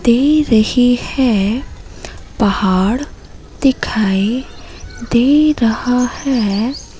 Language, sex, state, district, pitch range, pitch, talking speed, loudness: Hindi, female, Madhya Pradesh, Katni, 215-260 Hz, 245 Hz, 70 wpm, -15 LUFS